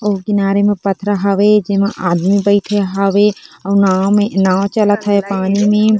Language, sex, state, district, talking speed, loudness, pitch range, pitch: Chhattisgarhi, female, Chhattisgarh, Korba, 170 wpm, -14 LUFS, 195-205 Hz, 200 Hz